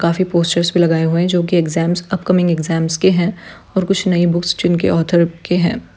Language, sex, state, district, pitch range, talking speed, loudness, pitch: Hindi, female, Bihar, Supaul, 170-180 Hz, 210 wpm, -16 LUFS, 175 Hz